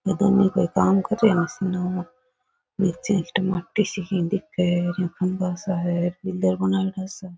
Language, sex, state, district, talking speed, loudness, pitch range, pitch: Rajasthani, female, Rajasthan, Churu, 80 wpm, -23 LUFS, 175-195 Hz, 185 Hz